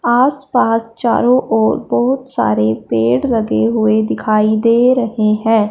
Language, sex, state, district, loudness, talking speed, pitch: Hindi, female, Punjab, Fazilka, -14 LUFS, 135 wpm, 225 Hz